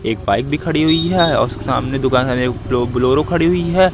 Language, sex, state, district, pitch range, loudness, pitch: Hindi, male, Madhya Pradesh, Katni, 125-170 Hz, -16 LUFS, 135 Hz